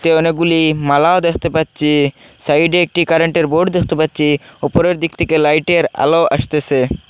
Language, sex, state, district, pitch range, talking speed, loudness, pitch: Bengali, male, Assam, Hailakandi, 150-170 Hz, 160 wpm, -14 LUFS, 160 Hz